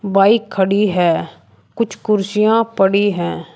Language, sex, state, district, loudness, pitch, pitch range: Hindi, male, Uttar Pradesh, Shamli, -16 LUFS, 200 Hz, 190-215 Hz